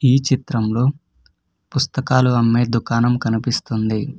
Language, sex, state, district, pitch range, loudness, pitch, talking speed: Telugu, male, Karnataka, Bangalore, 115-130 Hz, -18 LUFS, 120 Hz, 85 wpm